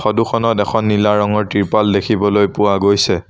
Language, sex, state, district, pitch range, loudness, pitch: Assamese, male, Assam, Sonitpur, 100-110 Hz, -15 LUFS, 105 Hz